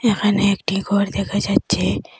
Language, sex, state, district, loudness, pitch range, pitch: Bengali, female, Assam, Hailakandi, -19 LUFS, 200-205 Hz, 200 Hz